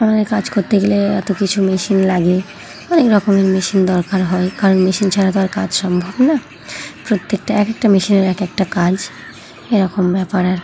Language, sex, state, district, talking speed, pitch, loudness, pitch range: Bengali, female, West Bengal, Jhargram, 170 wpm, 195 Hz, -15 LUFS, 185-205 Hz